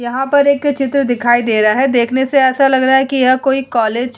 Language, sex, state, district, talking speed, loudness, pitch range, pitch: Hindi, female, Bihar, Vaishali, 270 wpm, -13 LUFS, 240-270 Hz, 265 Hz